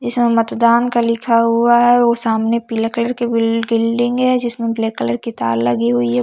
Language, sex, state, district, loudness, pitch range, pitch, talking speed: Hindi, female, Chhattisgarh, Jashpur, -15 LUFS, 225-240 Hz, 230 Hz, 200 wpm